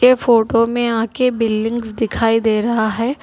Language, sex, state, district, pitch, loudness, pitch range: Hindi, female, Telangana, Hyderabad, 230 Hz, -16 LUFS, 225-240 Hz